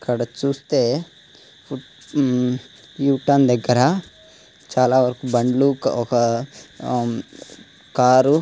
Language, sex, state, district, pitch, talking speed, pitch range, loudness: Telugu, male, Telangana, Nalgonda, 125 Hz, 70 wpm, 125-140 Hz, -19 LUFS